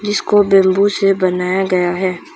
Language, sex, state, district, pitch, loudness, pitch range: Hindi, female, Arunachal Pradesh, Papum Pare, 190 Hz, -14 LUFS, 185-200 Hz